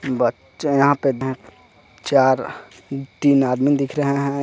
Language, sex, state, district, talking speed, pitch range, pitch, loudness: Hindi, male, Jharkhand, Garhwa, 150 wpm, 130-140 Hz, 135 Hz, -19 LUFS